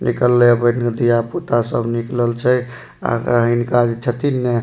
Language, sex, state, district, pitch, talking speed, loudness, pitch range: Maithili, male, Bihar, Supaul, 120 Hz, 205 wpm, -17 LUFS, 120-125 Hz